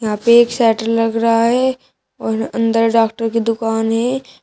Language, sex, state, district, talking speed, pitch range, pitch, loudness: Hindi, female, Uttar Pradesh, Shamli, 175 wpm, 225-235 Hz, 230 Hz, -15 LUFS